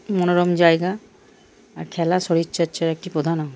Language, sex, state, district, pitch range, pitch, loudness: Bengali, male, Jharkhand, Jamtara, 165-180 Hz, 170 Hz, -20 LUFS